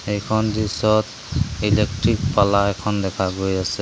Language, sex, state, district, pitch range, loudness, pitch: Assamese, male, Assam, Sonitpur, 100-110 Hz, -20 LUFS, 105 Hz